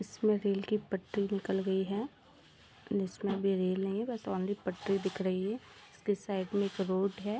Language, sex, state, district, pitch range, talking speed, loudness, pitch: Hindi, female, Jharkhand, Jamtara, 190-205 Hz, 205 wpm, -34 LUFS, 195 Hz